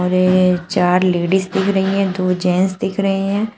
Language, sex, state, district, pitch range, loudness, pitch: Hindi, female, Uttar Pradesh, Shamli, 180-195 Hz, -16 LUFS, 185 Hz